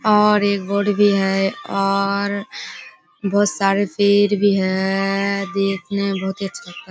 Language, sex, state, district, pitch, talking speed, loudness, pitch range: Hindi, female, Bihar, Kishanganj, 200 Hz, 145 wpm, -19 LUFS, 195-205 Hz